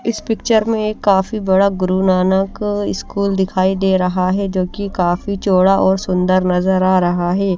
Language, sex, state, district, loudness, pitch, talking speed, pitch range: Hindi, female, Chandigarh, Chandigarh, -16 LUFS, 190 Hz, 160 wpm, 185-200 Hz